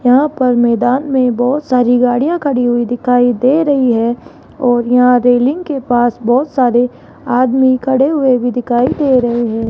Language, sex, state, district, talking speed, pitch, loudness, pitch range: Hindi, female, Rajasthan, Jaipur, 175 wpm, 250 Hz, -13 LUFS, 245-265 Hz